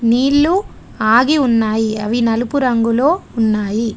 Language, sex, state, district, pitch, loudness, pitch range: Telugu, female, Telangana, Adilabad, 230 Hz, -15 LUFS, 220-270 Hz